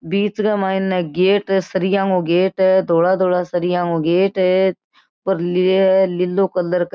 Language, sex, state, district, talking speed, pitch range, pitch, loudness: Marwari, female, Rajasthan, Nagaur, 165 wpm, 180-190 Hz, 185 Hz, -17 LUFS